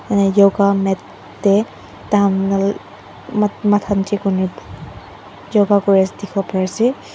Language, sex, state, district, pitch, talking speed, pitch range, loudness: Nagamese, female, Mizoram, Aizawl, 200 Hz, 115 wpm, 195-205 Hz, -17 LUFS